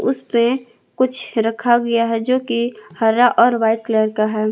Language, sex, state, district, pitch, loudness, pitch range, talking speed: Hindi, female, Jharkhand, Palamu, 235 Hz, -17 LUFS, 225-245 Hz, 175 wpm